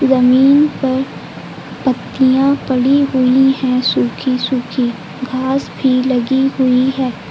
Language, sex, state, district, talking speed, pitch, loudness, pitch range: Hindi, female, Uttar Pradesh, Lucknow, 105 wpm, 260 Hz, -14 LUFS, 255-270 Hz